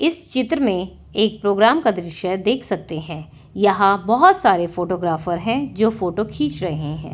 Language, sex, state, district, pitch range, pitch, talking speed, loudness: Hindi, female, Delhi, New Delhi, 175-225 Hz, 195 Hz, 170 wpm, -19 LUFS